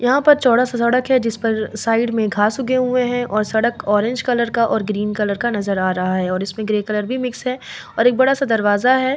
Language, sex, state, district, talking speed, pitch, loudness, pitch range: Hindi, female, Bihar, Vaishali, 260 wpm, 230 Hz, -18 LUFS, 210-250 Hz